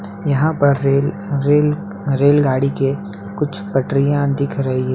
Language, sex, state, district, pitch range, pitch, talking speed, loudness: Hindi, male, Uttar Pradesh, Budaun, 135-145 Hz, 140 Hz, 135 wpm, -17 LUFS